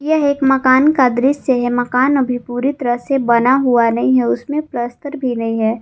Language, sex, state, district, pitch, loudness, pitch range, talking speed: Hindi, female, Jharkhand, Palamu, 250 Hz, -15 LUFS, 240-275 Hz, 205 wpm